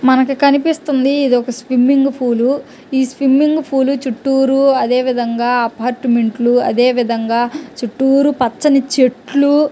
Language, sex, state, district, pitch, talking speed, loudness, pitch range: Telugu, male, Andhra Pradesh, Guntur, 260 Hz, 95 wpm, -14 LUFS, 245-275 Hz